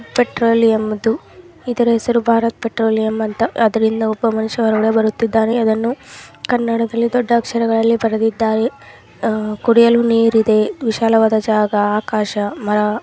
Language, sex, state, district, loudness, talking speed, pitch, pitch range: Kannada, female, Karnataka, Raichur, -16 LUFS, 120 wpm, 225 Hz, 220-230 Hz